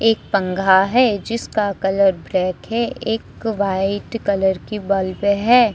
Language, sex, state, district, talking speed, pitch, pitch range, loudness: Hindi, female, Jharkhand, Deoghar, 135 wpm, 200 Hz, 190-225 Hz, -19 LUFS